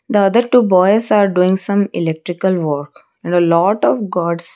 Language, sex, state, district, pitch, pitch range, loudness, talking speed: English, female, Odisha, Malkangiri, 185 Hz, 170-205 Hz, -15 LUFS, 185 wpm